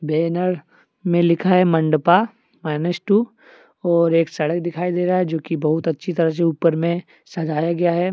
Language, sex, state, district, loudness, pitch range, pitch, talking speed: Hindi, male, Jharkhand, Deoghar, -19 LUFS, 165-180 Hz, 170 Hz, 175 wpm